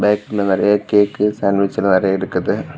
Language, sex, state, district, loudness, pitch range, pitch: Tamil, male, Tamil Nadu, Kanyakumari, -16 LUFS, 95-105 Hz, 105 Hz